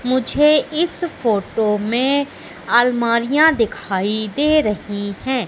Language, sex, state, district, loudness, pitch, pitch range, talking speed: Hindi, female, Madhya Pradesh, Katni, -18 LUFS, 240 Hz, 210-285 Hz, 100 wpm